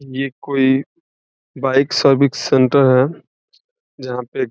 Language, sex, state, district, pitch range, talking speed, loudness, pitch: Hindi, male, Bihar, Saran, 130-140 Hz, 120 wpm, -16 LUFS, 135 Hz